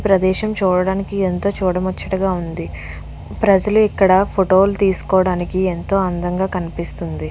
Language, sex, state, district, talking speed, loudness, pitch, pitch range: Telugu, female, Andhra Pradesh, Visakhapatnam, 115 wpm, -17 LUFS, 185 Hz, 175-195 Hz